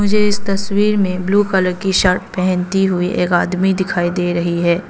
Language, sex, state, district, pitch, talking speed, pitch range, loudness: Hindi, female, Arunachal Pradesh, Papum Pare, 185 Hz, 185 wpm, 180-195 Hz, -16 LUFS